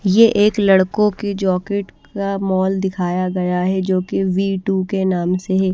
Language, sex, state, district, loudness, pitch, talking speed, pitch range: Hindi, female, Odisha, Malkangiri, -18 LUFS, 190 Hz, 180 wpm, 185-200 Hz